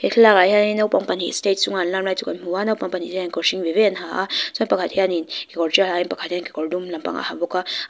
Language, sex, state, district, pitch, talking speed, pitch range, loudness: Mizo, female, Mizoram, Aizawl, 185 Hz, 320 wpm, 175-195 Hz, -20 LUFS